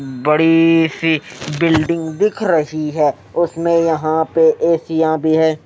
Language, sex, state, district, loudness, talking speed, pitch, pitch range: Hindi, male, Odisha, Nuapada, -15 LUFS, 125 wpm, 160 Hz, 155-165 Hz